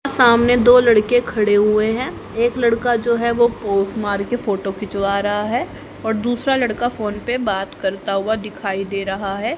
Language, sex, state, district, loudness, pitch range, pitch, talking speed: Hindi, female, Haryana, Jhajjar, -18 LUFS, 200-240 Hz, 220 Hz, 190 wpm